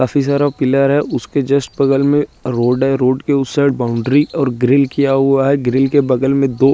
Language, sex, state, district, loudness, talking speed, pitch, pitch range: Hindi, male, Chandigarh, Chandigarh, -14 LUFS, 230 wpm, 135 Hz, 130-140 Hz